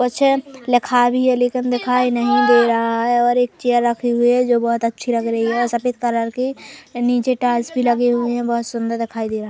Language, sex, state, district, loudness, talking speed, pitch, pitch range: Hindi, female, Chhattisgarh, Korba, -18 LUFS, 220 wpm, 240 Hz, 235-250 Hz